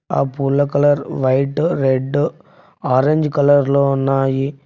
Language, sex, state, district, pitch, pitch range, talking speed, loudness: Telugu, male, Telangana, Mahabubabad, 140 Hz, 135-145 Hz, 115 wpm, -16 LUFS